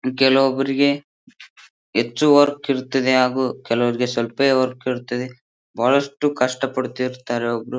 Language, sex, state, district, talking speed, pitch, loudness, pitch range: Kannada, male, Karnataka, Bijapur, 100 wpm, 130 Hz, -20 LUFS, 125-135 Hz